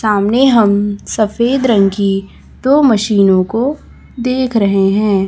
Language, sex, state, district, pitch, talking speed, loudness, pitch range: Hindi, male, Chhattisgarh, Raipur, 215 Hz, 125 wpm, -13 LUFS, 200-250 Hz